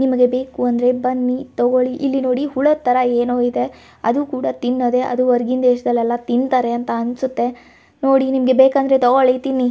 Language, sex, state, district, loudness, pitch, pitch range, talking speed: Kannada, female, Karnataka, Gulbarga, -17 LUFS, 250 Hz, 245-265 Hz, 155 wpm